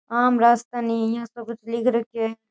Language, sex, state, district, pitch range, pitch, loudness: Rajasthani, female, Rajasthan, Nagaur, 230-240 Hz, 235 Hz, -22 LUFS